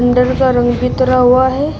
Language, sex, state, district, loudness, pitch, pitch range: Hindi, female, Uttar Pradesh, Shamli, -12 LUFS, 255 Hz, 250-260 Hz